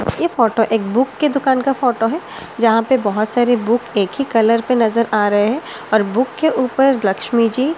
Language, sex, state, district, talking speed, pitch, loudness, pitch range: Hindi, female, Delhi, New Delhi, 215 wpm, 235 Hz, -16 LUFS, 225-265 Hz